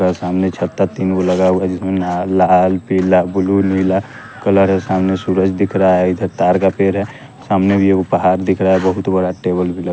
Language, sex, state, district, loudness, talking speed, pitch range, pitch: Hindi, male, Bihar, West Champaran, -15 LUFS, 230 wpm, 90-95 Hz, 95 Hz